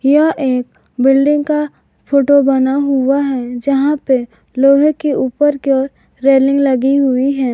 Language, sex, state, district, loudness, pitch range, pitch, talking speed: Hindi, female, Jharkhand, Garhwa, -13 LUFS, 265-285 Hz, 275 Hz, 150 wpm